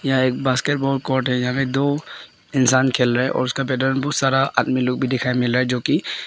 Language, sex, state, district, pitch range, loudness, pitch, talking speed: Hindi, male, Arunachal Pradesh, Papum Pare, 125-135 Hz, -20 LUFS, 130 Hz, 240 wpm